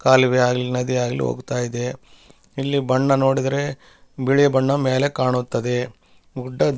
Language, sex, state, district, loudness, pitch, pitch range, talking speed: Kannada, male, Karnataka, Bellary, -20 LUFS, 130 Hz, 125-135 Hz, 135 wpm